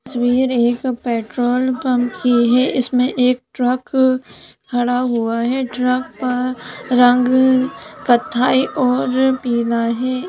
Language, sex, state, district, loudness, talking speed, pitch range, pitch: Hindi, female, Bihar, East Champaran, -17 LUFS, 110 wpm, 245-255 Hz, 250 Hz